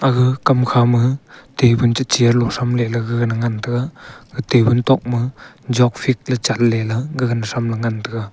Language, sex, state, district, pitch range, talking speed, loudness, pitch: Wancho, male, Arunachal Pradesh, Longding, 115-130 Hz, 195 wpm, -17 LUFS, 120 Hz